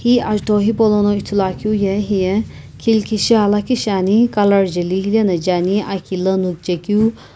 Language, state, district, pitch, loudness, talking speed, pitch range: Sumi, Nagaland, Kohima, 205 Hz, -16 LUFS, 145 wpm, 190-215 Hz